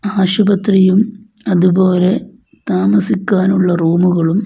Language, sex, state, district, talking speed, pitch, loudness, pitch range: Malayalam, male, Kerala, Wayanad, 65 wpm, 185 Hz, -13 LUFS, 180-205 Hz